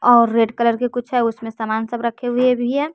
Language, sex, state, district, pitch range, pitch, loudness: Hindi, male, Bihar, West Champaran, 230-245 Hz, 240 Hz, -19 LUFS